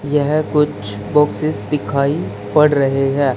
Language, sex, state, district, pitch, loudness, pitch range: Hindi, male, Haryana, Charkhi Dadri, 145 Hz, -17 LUFS, 135-150 Hz